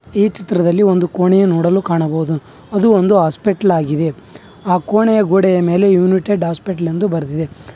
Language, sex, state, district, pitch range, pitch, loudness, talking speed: Kannada, male, Karnataka, Bangalore, 165-200 Hz, 180 Hz, -14 LUFS, 140 wpm